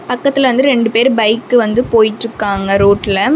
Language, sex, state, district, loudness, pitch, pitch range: Tamil, female, Tamil Nadu, Namakkal, -12 LUFS, 230 Hz, 210-250 Hz